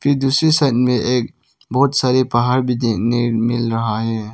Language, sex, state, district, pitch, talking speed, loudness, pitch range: Hindi, male, Arunachal Pradesh, Papum Pare, 125 Hz, 195 wpm, -17 LUFS, 115-130 Hz